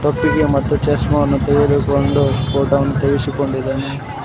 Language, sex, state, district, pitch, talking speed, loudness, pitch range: Kannada, male, Karnataka, Koppal, 140 Hz, 70 wpm, -16 LUFS, 140-145 Hz